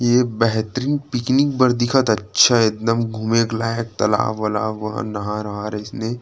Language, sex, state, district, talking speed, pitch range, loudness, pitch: Chhattisgarhi, male, Chhattisgarh, Rajnandgaon, 155 wpm, 110-120 Hz, -19 LUFS, 115 Hz